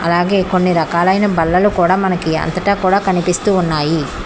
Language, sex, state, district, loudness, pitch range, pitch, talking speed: Telugu, female, Telangana, Hyderabad, -14 LUFS, 170-190 Hz, 180 Hz, 140 wpm